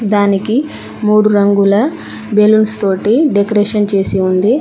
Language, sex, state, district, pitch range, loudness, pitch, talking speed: Telugu, female, Telangana, Mahabubabad, 200-215 Hz, -12 LUFS, 210 Hz, 105 wpm